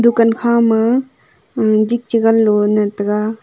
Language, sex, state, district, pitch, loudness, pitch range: Wancho, female, Arunachal Pradesh, Longding, 225 Hz, -14 LUFS, 215-235 Hz